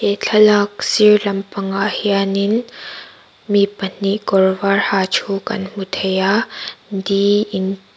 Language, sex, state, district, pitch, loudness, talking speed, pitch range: Mizo, female, Mizoram, Aizawl, 200 Hz, -17 LUFS, 135 wpm, 195-205 Hz